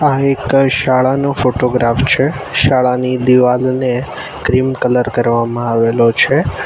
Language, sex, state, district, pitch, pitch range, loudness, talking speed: Gujarati, male, Gujarat, Navsari, 125 Hz, 120-135 Hz, -13 LUFS, 110 wpm